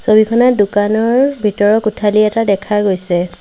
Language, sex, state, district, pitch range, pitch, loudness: Assamese, female, Assam, Sonitpur, 205-225 Hz, 210 Hz, -13 LUFS